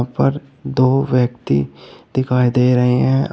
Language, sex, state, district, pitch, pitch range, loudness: Hindi, male, Uttar Pradesh, Shamli, 125 Hz, 125-135 Hz, -17 LUFS